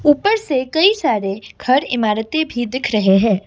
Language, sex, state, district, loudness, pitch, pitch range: Hindi, female, Assam, Kamrup Metropolitan, -17 LUFS, 255 Hz, 215-305 Hz